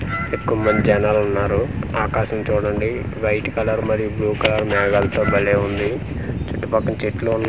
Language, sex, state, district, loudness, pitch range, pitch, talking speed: Telugu, male, Andhra Pradesh, Manyam, -20 LUFS, 100-110 Hz, 105 Hz, 130 wpm